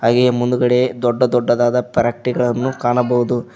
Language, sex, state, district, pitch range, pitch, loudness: Kannada, male, Karnataka, Koppal, 120-125 Hz, 125 Hz, -16 LUFS